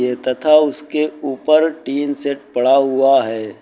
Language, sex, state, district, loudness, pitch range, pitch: Hindi, male, Uttar Pradesh, Lucknow, -16 LUFS, 130-150 Hz, 140 Hz